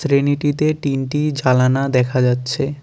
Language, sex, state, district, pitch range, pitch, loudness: Bengali, male, West Bengal, Cooch Behar, 130-145 Hz, 140 Hz, -17 LUFS